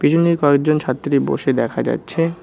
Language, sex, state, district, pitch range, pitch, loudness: Bengali, male, West Bengal, Cooch Behar, 140-165 Hz, 145 Hz, -18 LUFS